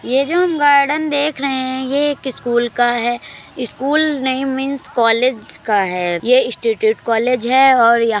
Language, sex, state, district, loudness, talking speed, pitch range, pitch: Hindi, male, Uttar Pradesh, Jyotiba Phule Nagar, -16 LUFS, 185 wpm, 235-275 Hz, 255 Hz